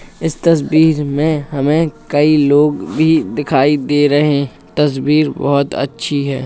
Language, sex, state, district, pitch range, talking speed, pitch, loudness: Hindi, male, Uttar Pradesh, Hamirpur, 140-155 Hz, 140 wpm, 145 Hz, -14 LUFS